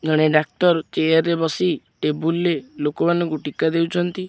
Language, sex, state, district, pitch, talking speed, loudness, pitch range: Odia, male, Odisha, Khordha, 165 Hz, 155 wpm, -20 LUFS, 155-175 Hz